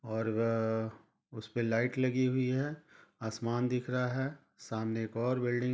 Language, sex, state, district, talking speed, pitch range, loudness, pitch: Hindi, male, Jharkhand, Jamtara, 155 wpm, 110-125 Hz, -34 LUFS, 120 Hz